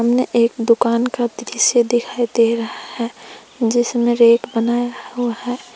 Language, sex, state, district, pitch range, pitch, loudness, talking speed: Hindi, female, Jharkhand, Palamu, 235-240 Hz, 240 Hz, -17 LUFS, 145 wpm